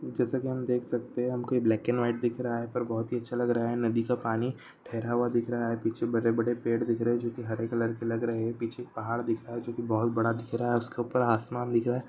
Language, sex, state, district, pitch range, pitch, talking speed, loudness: Hindi, male, Chhattisgarh, Sarguja, 115-120 Hz, 120 Hz, 295 wpm, -30 LUFS